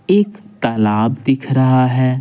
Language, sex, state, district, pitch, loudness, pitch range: Hindi, male, Bihar, Patna, 130 Hz, -16 LUFS, 125-135 Hz